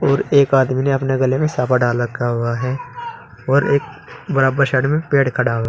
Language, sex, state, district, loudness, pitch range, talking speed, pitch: Hindi, male, Uttar Pradesh, Saharanpur, -17 LUFS, 125-140 Hz, 220 wpm, 135 Hz